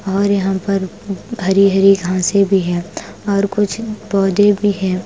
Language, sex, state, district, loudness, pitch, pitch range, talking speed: Hindi, female, Punjab, Pathankot, -16 LUFS, 195 Hz, 190-205 Hz, 155 wpm